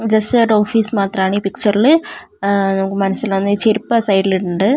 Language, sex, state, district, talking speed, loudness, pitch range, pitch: Malayalam, female, Kerala, Wayanad, 175 wpm, -15 LUFS, 195-225 Hz, 205 Hz